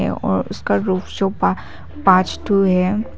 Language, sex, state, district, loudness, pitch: Hindi, female, Arunachal Pradesh, Papum Pare, -18 LUFS, 185 Hz